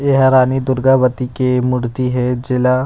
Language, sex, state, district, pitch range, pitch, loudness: Chhattisgarhi, male, Chhattisgarh, Rajnandgaon, 125-130 Hz, 125 Hz, -15 LUFS